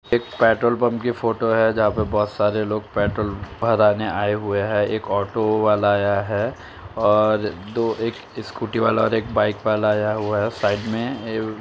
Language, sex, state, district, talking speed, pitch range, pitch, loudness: Hindi, male, Uttar Pradesh, Jalaun, 185 wpm, 105-115 Hz, 110 Hz, -21 LUFS